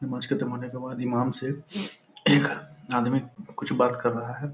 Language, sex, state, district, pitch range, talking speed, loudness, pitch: Hindi, male, Bihar, Purnia, 125-135 Hz, 90 wpm, -27 LUFS, 125 Hz